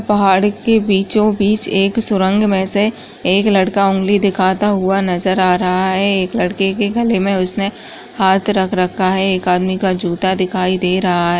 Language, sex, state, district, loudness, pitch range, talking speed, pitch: Hindi, female, Chhattisgarh, Sukma, -15 LUFS, 185-205 Hz, 190 wpm, 195 Hz